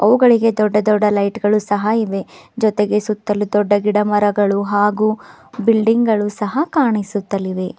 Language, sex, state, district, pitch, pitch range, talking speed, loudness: Kannada, female, Karnataka, Bidar, 210 Hz, 205-220 Hz, 130 wpm, -16 LUFS